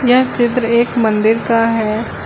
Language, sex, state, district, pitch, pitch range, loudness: Hindi, female, Uttar Pradesh, Lucknow, 230 Hz, 225-240 Hz, -14 LUFS